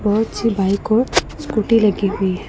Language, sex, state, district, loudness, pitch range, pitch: Hindi, female, Punjab, Pathankot, -18 LUFS, 200-225 Hz, 210 Hz